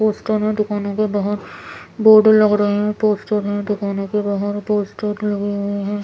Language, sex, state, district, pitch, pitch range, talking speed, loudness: Hindi, female, Bihar, Patna, 210 Hz, 205-210 Hz, 190 wpm, -18 LUFS